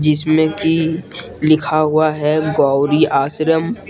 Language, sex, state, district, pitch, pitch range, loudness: Hindi, male, Jharkhand, Deoghar, 155 Hz, 150-160 Hz, -15 LUFS